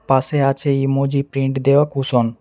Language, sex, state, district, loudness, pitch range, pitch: Bengali, male, West Bengal, Alipurduar, -17 LUFS, 135-140 Hz, 135 Hz